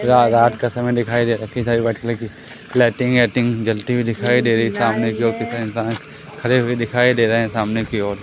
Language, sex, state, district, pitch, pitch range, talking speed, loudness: Hindi, male, Madhya Pradesh, Umaria, 115 Hz, 115-120 Hz, 255 wpm, -18 LUFS